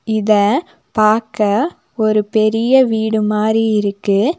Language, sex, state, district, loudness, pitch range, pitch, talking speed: Tamil, female, Tamil Nadu, Nilgiris, -15 LUFS, 210-225 Hz, 215 Hz, 95 wpm